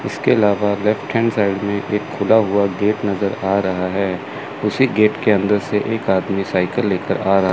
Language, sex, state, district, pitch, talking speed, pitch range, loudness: Hindi, male, Chandigarh, Chandigarh, 100 Hz, 200 wpm, 95-105 Hz, -18 LUFS